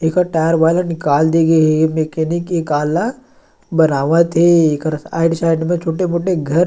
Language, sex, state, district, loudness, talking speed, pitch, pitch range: Chhattisgarhi, male, Chhattisgarh, Sarguja, -15 LUFS, 190 wpm, 165 Hz, 160-170 Hz